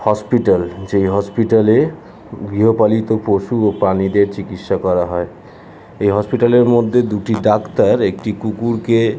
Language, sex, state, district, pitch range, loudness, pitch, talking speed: Bengali, male, West Bengal, Jhargram, 100-115 Hz, -15 LUFS, 105 Hz, 145 wpm